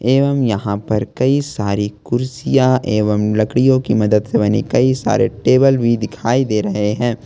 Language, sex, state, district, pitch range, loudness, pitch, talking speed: Hindi, male, Jharkhand, Ranchi, 105-130 Hz, -16 LUFS, 115 Hz, 165 wpm